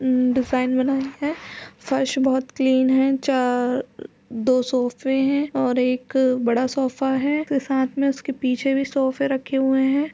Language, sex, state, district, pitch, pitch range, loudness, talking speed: Hindi, female, Uttar Pradesh, Etah, 265 Hz, 255-270 Hz, -21 LUFS, 160 wpm